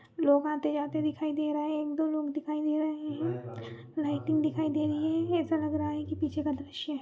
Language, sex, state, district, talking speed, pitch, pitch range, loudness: Hindi, female, Chhattisgarh, Raigarh, 220 wpm, 300 Hz, 295-310 Hz, -31 LUFS